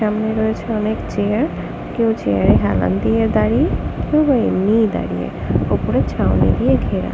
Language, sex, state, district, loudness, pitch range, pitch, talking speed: Bengali, female, West Bengal, Kolkata, -17 LUFS, 200-225 Hz, 220 Hz, 150 wpm